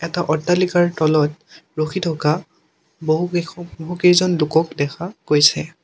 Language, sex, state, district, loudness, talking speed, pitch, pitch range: Assamese, male, Assam, Sonitpur, -18 LUFS, 105 wpm, 165 Hz, 155-175 Hz